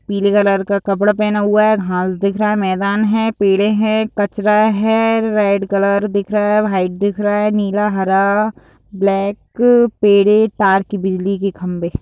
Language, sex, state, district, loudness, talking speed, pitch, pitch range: Hindi, female, Bihar, Sitamarhi, -15 LUFS, 175 wpm, 205 Hz, 195-210 Hz